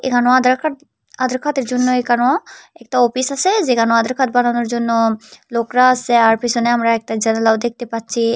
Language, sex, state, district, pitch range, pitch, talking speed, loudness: Bengali, female, Tripura, Unakoti, 230-255 Hz, 240 Hz, 170 wpm, -16 LUFS